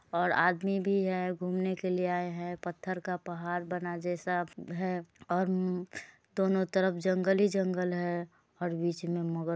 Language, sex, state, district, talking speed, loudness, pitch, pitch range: Hindi, female, Bihar, Muzaffarpur, 165 wpm, -32 LUFS, 180 Hz, 175-185 Hz